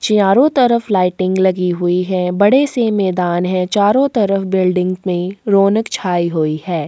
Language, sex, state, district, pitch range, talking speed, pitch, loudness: Hindi, female, Chhattisgarh, Sukma, 180-210 Hz, 155 wpm, 190 Hz, -15 LUFS